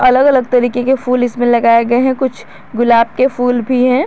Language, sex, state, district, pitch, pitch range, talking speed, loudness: Hindi, female, Jharkhand, Garhwa, 245 Hz, 240-255 Hz, 220 wpm, -12 LUFS